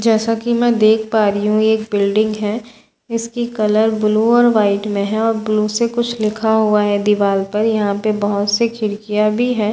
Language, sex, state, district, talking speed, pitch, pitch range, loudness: Hindi, female, Bihar, Katihar, 215 wpm, 215 Hz, 210-225 Hz, -16 LUFS